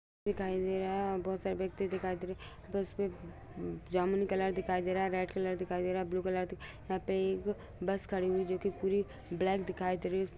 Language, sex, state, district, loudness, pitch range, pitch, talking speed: Hindi, male, Bihar, Araria, -35 LUFS, 185-190 Hz, 190 Hz, 250 wpm